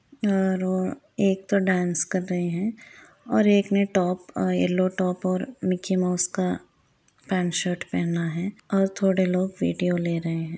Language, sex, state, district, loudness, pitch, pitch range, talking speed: Hindi, female, Uttar Pradesh, Varanasi, -25 LUFS, 185 Hz, 175-195 Hz, 170 wpm